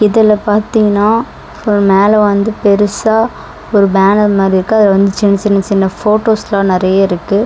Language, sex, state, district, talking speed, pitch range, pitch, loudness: Tamil, female, Tamil Nadu, Chennai, 145 wpm, 195-215 Hz, 205 Hz, -11 LUFS